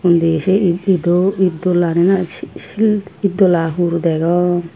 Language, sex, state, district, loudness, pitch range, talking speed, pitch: Chakma, female, Tripura, Dhalai, -15 LUFS, 170-190 Hz, 165 wpm, 180 Hz